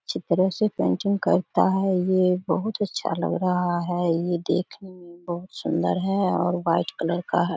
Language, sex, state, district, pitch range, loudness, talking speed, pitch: Hindi, female, Bihar, Samastipur, 175-190 Hz, -24 LUFS, 175 wpm, 180 Hz